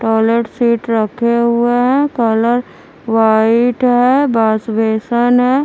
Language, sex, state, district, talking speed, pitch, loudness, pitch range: Hindi, female, Haryana, Charkhi Dadri, 105 wpm, 235 Hz, -13 LUFS, 225-245 Hz